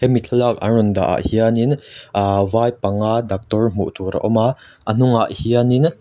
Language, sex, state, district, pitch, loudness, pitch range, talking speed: Mizo, male, Mizoram, Aizawl, 115 Hz, -18 LUFS, 100-120 Hz, 190 wpm